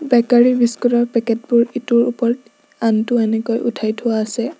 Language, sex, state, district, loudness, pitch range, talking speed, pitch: Assamese, female, Assam, Sonitpur, -17 LUFS, 230-240 Hz, 155 wpm, 235 Hz